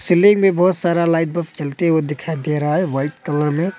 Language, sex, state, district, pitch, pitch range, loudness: Hindi, male, Arunachal Pradesh, Papum Pare, 165 Hz, 150-180 Hz, -18 LUFS